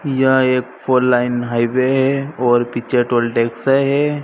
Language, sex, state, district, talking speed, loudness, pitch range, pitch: Hindi, male, Madhya Pradesh, Dhar, 155 wpm, -16 LUFS, 120-135 Hz, 125 Hz